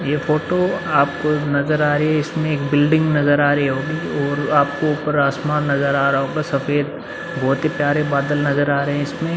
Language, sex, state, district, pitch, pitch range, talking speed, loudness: Hindi, male, Uttar Pradesh, Muzaffarnagar, 145 Hz, 140-155 Hz, 205 wpm, -18 LUFS